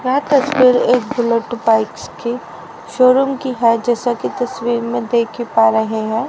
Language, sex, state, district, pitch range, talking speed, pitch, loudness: Hindi, female, Haryana, Rohtak, 230-255 Hz, 180 wpm, 240 Hz, -16 LUFS